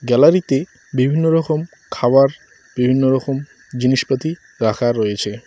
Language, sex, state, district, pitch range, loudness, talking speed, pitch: Bengali, male, West Bengal, Cooch Behar, 125-150 Hz, -17 LUFS, 110 wpm, 135 Hz